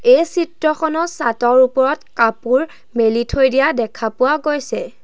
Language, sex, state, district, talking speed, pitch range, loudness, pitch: Assamese, female, Assam, Sonitpur, 130 wpm, 240-315 Hz, -16 LUFS, 265 Hz